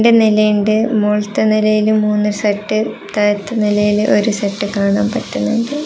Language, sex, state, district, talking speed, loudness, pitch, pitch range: Malayalam, female, Kerala, Kasaragod, 125 wpm, -15 LUFS, 210 Hz, 205-215 Hz